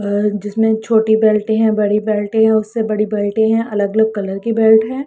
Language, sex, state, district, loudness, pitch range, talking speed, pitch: Hindi, female, Punjab, Pathankot, -15 LUFS, 210-220 Hz, 190 wpm, 220 Hz